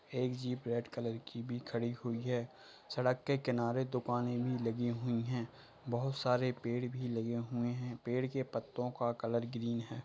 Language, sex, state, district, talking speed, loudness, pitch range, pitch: Hindi, male, Bihar, Muzaffarpur, 185 wpm, -37 LUFS, 120-125 Hz, 120 Hz